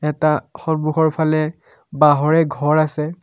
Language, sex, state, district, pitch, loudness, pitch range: Assamese, male, Assam, Kamrup Metropolitan, 155 Hz, -18 LUFS, 150-160 Hz